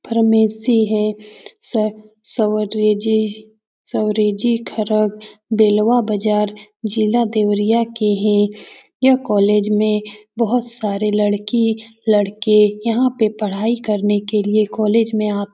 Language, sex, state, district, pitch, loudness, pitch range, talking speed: Hindi, female, Bihar, Saran, 215 Hz, -17 LUFS, 210-220 Hz, 105 wpm